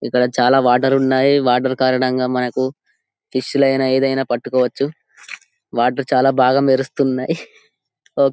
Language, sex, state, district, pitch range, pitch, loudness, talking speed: Telugu, male, Telangana, Karimnagar, 125-135 Hz, 130 Hz, -17 LUFS, 115 wpm